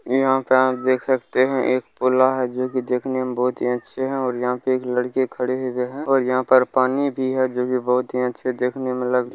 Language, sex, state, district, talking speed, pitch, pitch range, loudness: Maithili, male, Bihar, Saharsa, 240 wpm, 130 Hz, 125-130 Hz, -21 LUFS